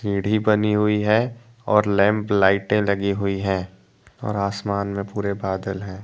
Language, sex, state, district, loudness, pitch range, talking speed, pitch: Hindi, male, Jharkhand, Deoghar, -21 LUFS, 100-105 Hz, 160 wpm, 100 Hz